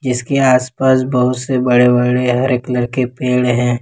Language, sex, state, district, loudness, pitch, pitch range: Hindi, male, Jharkhand, Ranchi, -14 LUFS, 125 Hz, 125-130 Hz